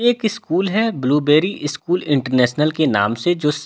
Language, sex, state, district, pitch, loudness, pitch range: Hindi, male, Delhi, New Delhi, 150 Hz, -18 LUFS, 145-185 Hz